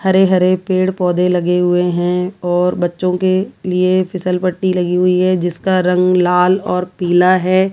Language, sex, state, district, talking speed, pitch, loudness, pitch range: Hindi, female, Rajasthan, Jaipur, 165 wpm, 180 Hz, -15 LUFS, 180-185 Hz